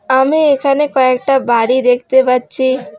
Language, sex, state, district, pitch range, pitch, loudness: Bengali, female, West Bengal, Alipurduar, 250-270 Hz, 260 Hz, -12 LUFS